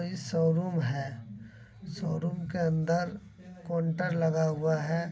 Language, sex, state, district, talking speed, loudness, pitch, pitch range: Angika, male, Bihar, Begusarai, 115 wpm, -30 LUFS, 165 Hz, 160-175 Hz